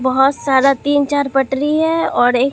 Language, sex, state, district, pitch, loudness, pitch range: Hindi, female, Bihar, Katihar, 275 Hz, -15 LUFS, 265-290 Hz